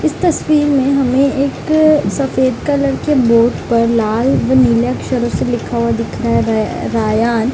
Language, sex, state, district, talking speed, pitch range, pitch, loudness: Hindi, female, Bihar, Gaya, 150 wpm, 195-275 Hz, 235 Hz, -14 LUFS